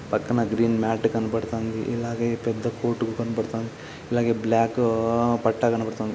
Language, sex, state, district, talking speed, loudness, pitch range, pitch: Telugu, male, Andhra Pradesh, Guntur, 115 wpm, -24 LUFS, 115-120 Hz, 115 Hz